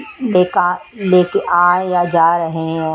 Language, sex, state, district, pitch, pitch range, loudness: Hindi, female, Chhattisgarh, Raipur, 180 Hz, 165-185 Hz, -15 LUFS